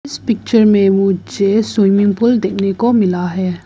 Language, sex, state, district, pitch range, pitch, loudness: Hindi, female, Arunachal Pradesh, Papum Pare, 195-225 Hz, 200 Hz, -14 LUFS